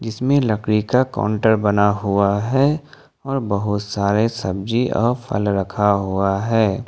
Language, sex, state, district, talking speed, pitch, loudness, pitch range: Hindi, male, Jharkhand, Ranchi, 140 wpm, 105 Hz, -19 LUFS, 100-120 Hz